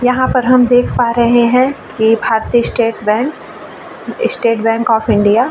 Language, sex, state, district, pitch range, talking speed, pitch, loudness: Hindi, female, Bihar, Vaishali, 225-245 Hz, 175 wpm, 235 Hz, -13 LUFS